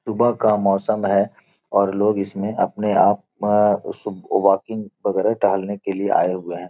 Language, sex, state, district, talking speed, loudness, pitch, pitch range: Hindi, male, Bihar, Gopalganj, 150 wpm, -20 LUFS, 100 Hz, 100-105 Hz